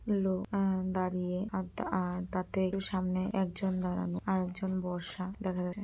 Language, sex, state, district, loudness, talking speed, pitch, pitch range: Bengali, female, West Bengal, Kolkata, -34 LUFS, 175 wpm, 185 Hz, 180-190 Hz